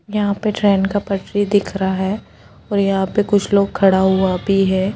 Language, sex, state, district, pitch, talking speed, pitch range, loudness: Hindi, female, Jharkhand, Jamtara, 200 Hz, 205 wpm, 190-205 Hz, -17 LUFS